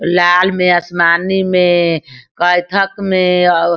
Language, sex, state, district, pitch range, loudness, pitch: Hindi, female, Bihar, Sitamarhi, 170-185 Hz, -13 LUFS, 175 Hz